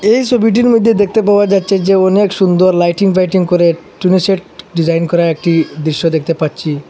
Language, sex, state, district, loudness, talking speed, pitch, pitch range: Bengali, male, Assam, Hailakandi, -12 LUFS, 175 wpm, 185 Hz, 165-200 Hz